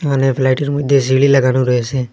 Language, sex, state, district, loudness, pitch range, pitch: Bengali, male, Assam, Hailakandi, -14 LUFS, 130-140 Hz, 135 Hz